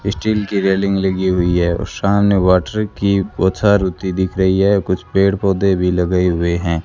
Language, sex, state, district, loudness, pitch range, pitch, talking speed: Hindi, male, Rajasthan, Bikaner, -16 LUFS, 90-100 Hz, 95 Hz, 195 wpm